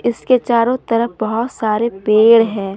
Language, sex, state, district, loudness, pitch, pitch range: Hindi, female, Jharkhand, Deoghar, -15 LUFS, 230 Hz, 215-240 Hz